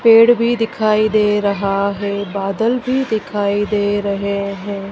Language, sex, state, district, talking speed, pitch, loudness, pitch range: Hindi, female, Madhya Pradesh, Dhar, 145 wpm, 205 Hz, -17 LUFS, 200-220 Hz